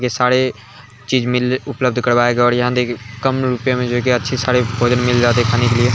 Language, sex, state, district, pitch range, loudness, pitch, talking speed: Hindi, male, Bihar, Begusarai, 120-125 Hz, -16 LUFS, 125 Hz, 240 wpm